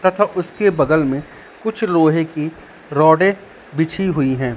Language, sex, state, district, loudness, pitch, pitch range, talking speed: Hindi, male, Madhya Pradesh, Katni, -17 LUFS, 160 Hz, 150-190 Hz, 145 wpm